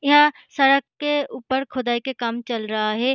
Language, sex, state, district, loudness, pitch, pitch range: Hindi, female, Bihar, Begusarai, -21 LUFS, 260 Hz, 235-280 Hz